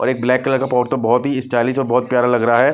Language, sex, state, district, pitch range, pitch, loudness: Hindi, male, Punjab, Kapurthala, 120-135 Hz, 125 Hz, -17 LUFS